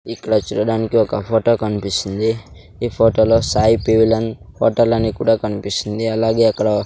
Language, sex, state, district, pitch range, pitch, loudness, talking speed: Telugu, male, Andhra Pradesh, Sri Satya Sai, 105-115 Hz, 110 Hz, -17 LUFS, 140 wpm